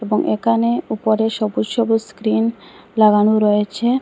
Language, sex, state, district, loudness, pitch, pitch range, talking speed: Bengali, female, Assam, Hailakandi, -17 LUFS, 220 Hz, 215-230 Hz, 120 wpm